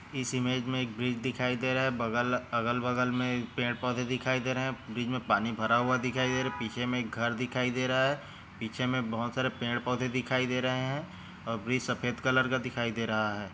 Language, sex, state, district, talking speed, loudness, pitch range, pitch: Hindi, male, Chhattisgarh, Korba, 240 wpm, -31 LUFS, 120-130 Hz, 125 Hz